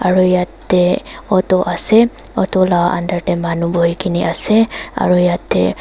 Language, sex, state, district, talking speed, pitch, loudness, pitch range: Nagamese, female, Nagaland, Dimapur, 155 wpm, 180 Hz, -15 LUFS, 175-190 Hz